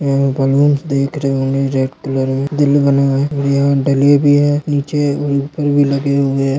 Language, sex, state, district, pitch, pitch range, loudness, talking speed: Hindi, male, Maharashtra, Dhule, 140 Hz, 135-145 Hz, -14 LUFS, 200 wpm